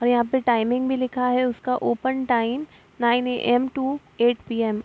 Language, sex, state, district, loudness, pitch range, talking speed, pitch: Hindi, female, Bihar, Araria, -23 LUFS, 240-260 Hz, 195 wpm, 245 Hz